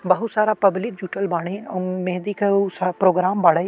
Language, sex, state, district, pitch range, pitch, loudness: Bhojpuri, male, Uttar Pradesh, Deoria, 185-200 Hz, 185 Hz, -21 LUFS